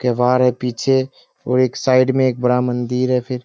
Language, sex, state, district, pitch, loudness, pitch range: Hindi, male, Bihar, Kishanganj, 125 Hz, -17 LUFS, 125-130 Hz